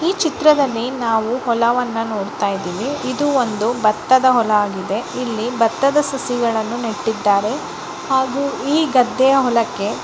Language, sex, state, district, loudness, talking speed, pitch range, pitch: Kannada, female, Karnataka, Bijapur, -18 LUFS, 115 wpm, 220-270 Hz, 245 Hz